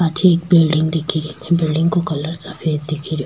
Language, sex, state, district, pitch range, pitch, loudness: Rajasthani, female, Rajasthan, Churu, 155-170 Hz, 160 Hz, -17 LUFS